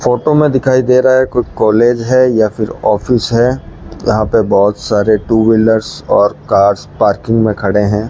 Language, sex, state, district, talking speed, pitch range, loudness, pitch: Hindi, male, Rajasthan, Bikaner, 185 wpm, 105-125 Hz, -12 LUFS, 110 Hz